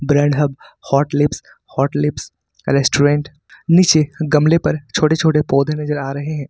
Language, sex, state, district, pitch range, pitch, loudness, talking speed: Hindi, male, Jharkhand, Ranchi, 140-155 Hz, 145 Hz, -16 LUFS, 155 wpm